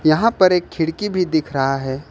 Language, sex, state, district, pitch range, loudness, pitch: Hindi, male, Jharkhand, Ranchi, 140-185 Hz, -18 LUFS, 160 Hz